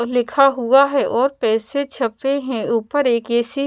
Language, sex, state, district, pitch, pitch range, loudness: Hindi, female, Bihar, Patna, 250 Hz, 235-275 Hz, -18 LUFS